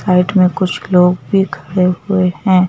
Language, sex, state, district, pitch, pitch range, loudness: Hindi, female, Madhya Pradesh, Bhopal, 185 Hz, 180-190 Hz, -14 LUFS